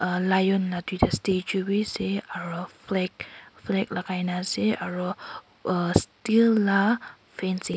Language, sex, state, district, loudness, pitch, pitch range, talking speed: Nagamese, female, Nagaland, Kohima, -26 LUFS, 190 Hz, 180-200 Hz, 115 wpm